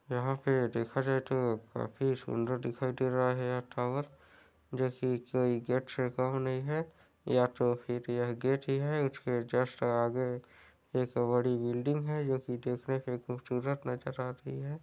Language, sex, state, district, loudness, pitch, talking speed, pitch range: Hindi, male, Chhattisgarh, Raigarh, -33 LUFS, 125 Hz, 160 wpm, 125-135 Hz